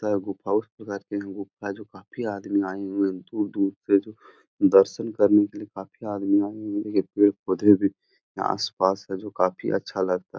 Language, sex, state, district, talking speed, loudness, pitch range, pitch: Hindi, male, Bihar, Supaul, 150 wpm, -24 LUFS, 95-105 Hz, 100 Hz